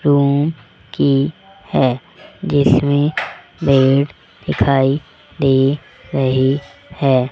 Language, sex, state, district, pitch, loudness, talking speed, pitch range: Hindi, female, Rajasthan, Jaipur, 140 Hz, -16 LUFS, 75 wpm, 130-145 Hz